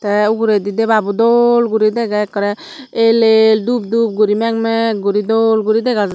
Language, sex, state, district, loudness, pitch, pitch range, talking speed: Chakma, female, Tripura, Dhalai, -14 LUFS, 220 Hz, 210-230 Hz, 185 wpm